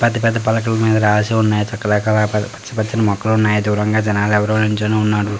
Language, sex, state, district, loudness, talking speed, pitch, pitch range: Telugu, male, Telangana, Karimnagar, -16 LUFS, 165 wpm, 110 Hz, 105-110 Hz